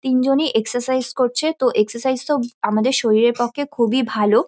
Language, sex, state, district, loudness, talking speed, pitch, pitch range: Bengali, female, West Bengal, North 24 Parganas, -19 LUFS, 145 wpm, 250 Hz, 235-260 Hz